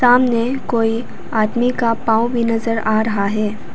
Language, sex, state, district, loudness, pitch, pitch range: Hindi, female, Arunachal Pradesh, Papum Pare, -18 LUFS, 230 Hz, 220-240 Hz